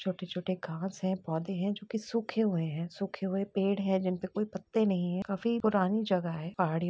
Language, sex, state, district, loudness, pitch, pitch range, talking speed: Hindi, female, Uttar Pradesh, Jalaun, -32 LUFS, 190 Hz, 180-200 Hz, 225 wpm